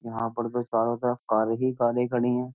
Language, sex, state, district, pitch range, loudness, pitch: Hindi, male, Uttar Pradesh, Jyotiba Phule Nagar, 115-125 Hz, -26 LUFS, 120 Hz